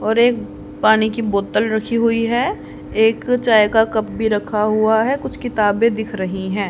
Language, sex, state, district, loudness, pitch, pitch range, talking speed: Hindi, female, Haryana, Rohtak, -17 LUFS, 220 Hz, 215-230 Hz, 190 wpm